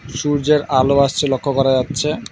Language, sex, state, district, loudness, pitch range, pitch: Bengali, male, West Bengal, Alipurduar, -17 LUFS, 135-150 Hz, 140 Hz